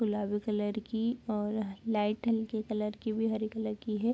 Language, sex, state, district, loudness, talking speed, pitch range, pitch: Hindi, female, Bihar, Darbhanga, -33 LUFS, 190 wpm, 210-225 Hz, 215 Hz